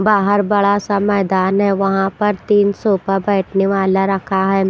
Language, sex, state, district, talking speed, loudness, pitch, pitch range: Hindi, female, Punjab, Pathankot, 165 wpm, -16 LUFS, 195 Hz, 195-205 Hz